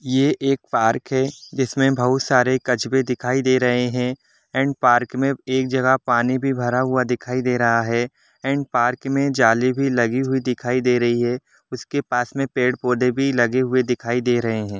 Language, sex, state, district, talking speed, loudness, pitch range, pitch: Hindi, male, Jharkhand, Sahebganj, 190 wpm, -20 LUFS, 125-135 Hz, 125 Hz